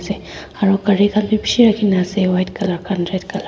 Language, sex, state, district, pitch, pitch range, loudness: Nagamese, female, Nagaland, Dimapur, 195 Hz, 185-210 Hz, -17 LUFS